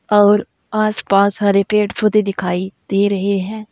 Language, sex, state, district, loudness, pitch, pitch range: Hindi, female, Uttar Pradesh, Saharanpur, -16 LUFS, 200 Hz, 195-210 Hz